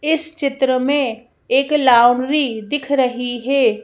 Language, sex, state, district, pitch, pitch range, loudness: Hindi, female, Madhya Pradesh, Bhopal, 265 Hz, 245-285 Hz, -17 LUFS